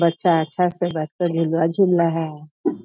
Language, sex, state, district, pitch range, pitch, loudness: Hindi, female, Bihar, East Champaran, 160-175 Hz, 165 Hz, -21 LUFS